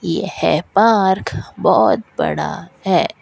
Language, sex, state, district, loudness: Hindi, female, Rajasthan, Bikaner, -17 LUFS